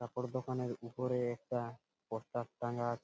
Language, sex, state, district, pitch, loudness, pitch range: Bengali, male, West Bengal, Purulia, 120 Hz, -40 LUFS, 120-125 Hz